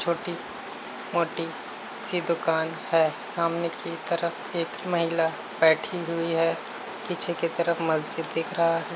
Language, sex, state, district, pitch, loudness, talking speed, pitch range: Hindi, male, Uttar Pradesh, Hamirpur, 170 Hz, -26 LUFS, 125 wpm, 165-170 Hz